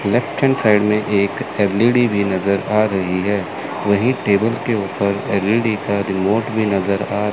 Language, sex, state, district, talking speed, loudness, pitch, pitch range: Hindi, male, Chandigarh, Chandigarh, 170 wpm, -18 LUFS, 100 Hz, 100-110 Hz